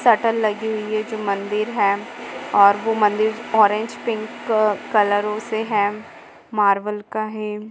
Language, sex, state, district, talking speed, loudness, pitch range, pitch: Hindi, female, Jharkhand, Sahebganj, 150 wpm, -20 LUFS, 210-220 Hz, 215 Hz